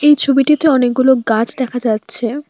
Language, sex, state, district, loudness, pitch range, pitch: Bengali, female, West Bengal, Alipurduar, -14 LUFS, 235-280 Hz, 255 Hz